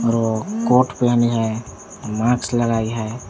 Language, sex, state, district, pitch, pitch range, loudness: Hindi, male, Jharkhand, Palamu, 115 Hz, 110-120 Hz, -19 LUFS